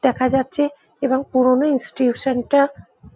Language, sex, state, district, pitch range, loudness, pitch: Bengali, female, West Bengal, Jhargram, 255-280 Hz, -19 LUFS, 265 Hz